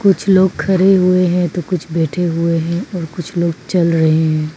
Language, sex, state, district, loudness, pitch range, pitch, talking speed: Hindi, female, Arunachal Pradesh, Papum Pare, -15 LUFS, 165-185 Hz, 175 Hz, 210 wpm